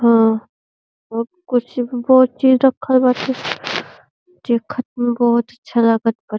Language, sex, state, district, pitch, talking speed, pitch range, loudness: Hindi, female, Uttar Pradesh, Deoria, 245 Hz, 120 wpm, 230-260 Hz, -17 LUFS